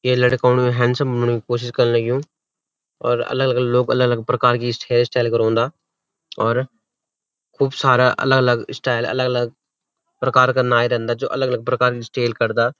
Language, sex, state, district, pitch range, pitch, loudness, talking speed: Garhwali, male, Uttarakhand, Uttarkashi, 120-125 Hz, 125 Hz, -18 LUFS, 150 wpm